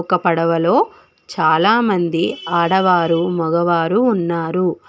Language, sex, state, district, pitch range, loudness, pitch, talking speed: Telugu, female, Telangana, Hyderabad, 170-190 Hz, -16 LUFS, 175 Hz, 85 wpm